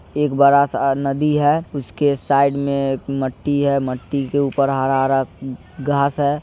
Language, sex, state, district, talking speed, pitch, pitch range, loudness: Maithili, male, Bihar, Supaul, 150 wpm, 140 Hz, 135-145 Hz, -18 LUFS